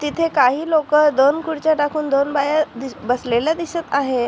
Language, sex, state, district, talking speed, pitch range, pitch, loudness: Marathi, female, Maharashtra, Chandrapur, 155 wpm, 265-315 Hz, 295 Hz, -18 LUFS